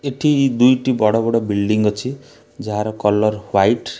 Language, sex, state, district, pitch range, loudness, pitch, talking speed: Odia, male, Odisha, Khordha, 105-130 Hz, -17 LUFS, 115 Hz, 150 wpm